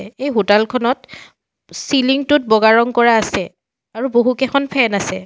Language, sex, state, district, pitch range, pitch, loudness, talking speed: Assamese, female, Assam, Sonitpur, 220-265 Hz, 245 Hz, -15 LUFS, 150 wpm